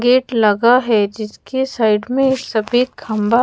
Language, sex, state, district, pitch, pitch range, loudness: Hindi, female, Odisha, Khordha, 240 Hz, 215-255 Hz, -16 LUFS